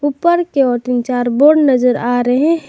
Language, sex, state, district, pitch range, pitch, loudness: Hindi, female, Jharkhand, Garhwa, 245-300 Hz, 265 Hz, -13 LUFS